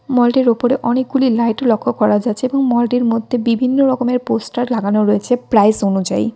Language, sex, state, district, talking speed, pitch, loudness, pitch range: Bengali, female, West Bengal, Cooch Behar, 160 wpm, 240 Hz, -15 LUFS, 220-250 Hz